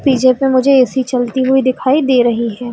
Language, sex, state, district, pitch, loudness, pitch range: Hindi, female, Chhattisgarh, Bilaspur, 255 Hz, -13 LUFS, 245-265 Hz